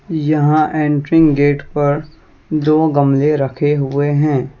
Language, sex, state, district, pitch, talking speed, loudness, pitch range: Hindi, male, Jharkhand, Deoghar, 145 Hz, 115 wpm, -15 LUFS, 140-155 Hz